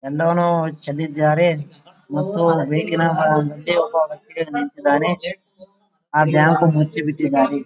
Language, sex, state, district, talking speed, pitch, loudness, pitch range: Kannada, male, Karnataka, Gulbarga, 70 wpm, 160 Hz, -19 LUFS, 150-170 Hz